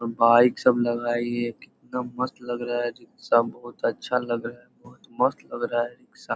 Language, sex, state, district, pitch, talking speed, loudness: Hindi, male, Bihar, Purnia, 120 Hz, 215 wpm, -25 LUFS